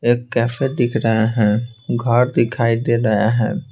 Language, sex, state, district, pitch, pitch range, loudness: Hindi, male, Bihar, Patna, 120 Hz, 115-120 Hz, -18 LUFS